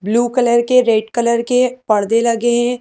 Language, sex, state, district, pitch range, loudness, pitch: Hindi, female, Madhya Pradesh, Bhopal, 230-245 Hz, -15 LUFS, 235 Hz